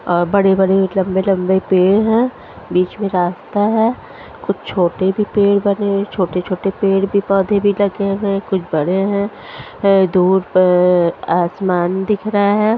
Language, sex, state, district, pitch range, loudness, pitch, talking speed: Hindi, female, Haryana, Charkhi Dadri, 185-200 Hz, -16 LUFS, 195 Hz, 165 wpm